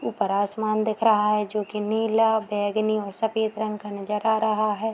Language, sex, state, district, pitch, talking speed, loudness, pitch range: Hindi, female, Bihar, Madhepura, 215 Hz, 205 wpm, -24 LUFS, 210-220 Hz